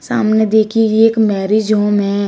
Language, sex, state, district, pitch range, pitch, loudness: Hindi, female, Uttar Pradesh, Shamli, 205-220 Hz, 215 Hz, -13 LUFS